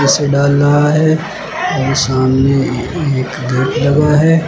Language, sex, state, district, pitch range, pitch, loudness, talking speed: Hindi, male, Uttar Pradesh, Lucknow, 130-150 Hz, 140 Hz, -13 LUFS, 135 wpm